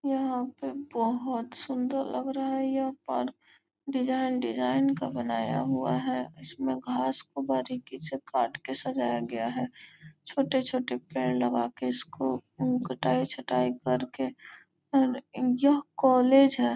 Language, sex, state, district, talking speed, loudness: Hindi, female, Bihar, Gopalganj, 135 wpm, -29 LUFS